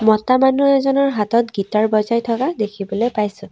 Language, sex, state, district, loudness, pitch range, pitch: Assamese, female, Assam, Sonitpur, -17 LUFS, 210-255 Hz, 220 Hz